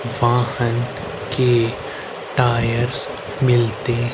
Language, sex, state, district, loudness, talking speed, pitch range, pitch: Hindi, male, Haryana, Rohtak, -19 LUFS, 60 wpm, 120-125 Hz, 120 Hz